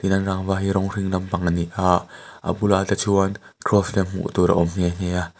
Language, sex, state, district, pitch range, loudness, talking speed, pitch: Mizo, male, Mizoram, Aizawl, 90-100 Hz, -22 LUFS, 210 wpm, 95 Hz